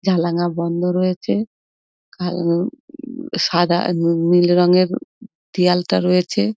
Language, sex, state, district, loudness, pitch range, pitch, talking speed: Bengali, female, West Bengal, Dakshin Dinajpur, -18 LUFS, 165-185 Hz, 175 Hz, 90 wpm